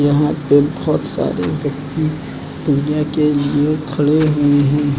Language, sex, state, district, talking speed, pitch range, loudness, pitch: Hindi, male, Uttar Pradesh, Lucknow, 120 wpm, 145-150 Hz, -16 LUFS, 145 Hz